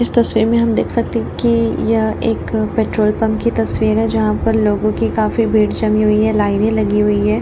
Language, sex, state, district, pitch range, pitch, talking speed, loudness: Hindi, female, Jharkhand, Jamtara, 205-220 Hz, 215 Hz, 225 wpm, -15 LUFS